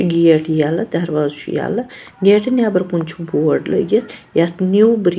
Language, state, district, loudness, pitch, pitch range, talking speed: Kashmiri, Punjab, Kapurthala, -16 LUFS, 175 Hz, 165-215 Hz, 140 wpm